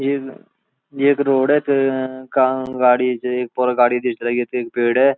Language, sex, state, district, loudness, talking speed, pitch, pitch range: Garhwali, male, Uttarakhand, Uttarkashi, -18 LUFS, 210 wpm, 130 Hz, 125-135 Hz